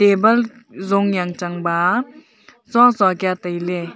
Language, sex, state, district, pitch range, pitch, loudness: Wancho, female, Arunachal Pradesh, Longding, 180-235 Hz, 195 Hz, -18 LUFS